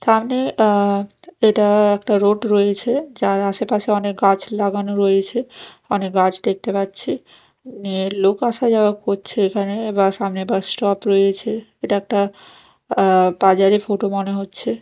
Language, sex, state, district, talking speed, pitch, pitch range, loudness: Bengali, female, Odisha, Nuapada, 130 wpm, 200 Hz, 195-215 Hz, -18 LUFS